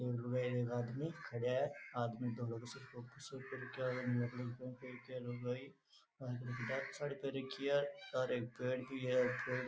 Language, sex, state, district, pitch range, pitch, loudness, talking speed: Rajasthani, male, Rajasthan, Nagaur, 125-135 Hz, 125 Hz, -42 LUFS, 95 wpm